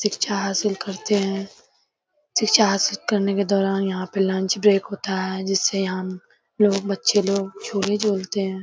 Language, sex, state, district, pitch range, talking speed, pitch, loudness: Hindi, female, Bihar, Bhagalpur, 195-205 Hz, 165 wpm, 195 Hz, -22 LUFS